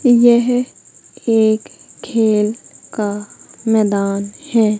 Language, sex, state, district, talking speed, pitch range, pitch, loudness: Hindi, female, Madhya Pradesh, Katni, 75 wpm, 210-240 Hz, 220 Hz, -16 LUFS